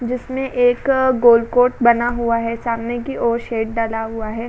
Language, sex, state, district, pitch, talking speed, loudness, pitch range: Hindi, female, Uttar Pradesh, Budaun, 235 Hz, 175 wpm, -18 LUFS, 230-245 Hz